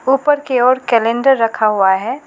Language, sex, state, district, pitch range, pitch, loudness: Hindi, female, West Bengal, Alipurduar, 230-270 Hz, 250 Hz, -14 LUFS